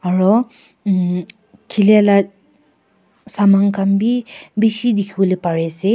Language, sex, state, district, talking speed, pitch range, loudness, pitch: Nagamese, female, Nagaland, Kohima, 90 wpm, 195-220 Hz, -16 LUFS, 200 Hz